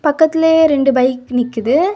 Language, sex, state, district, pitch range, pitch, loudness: Tamil, female, Tamil Nadu, Kanyakumari, 255-320 Hz, 285 Hz, -13 LUFS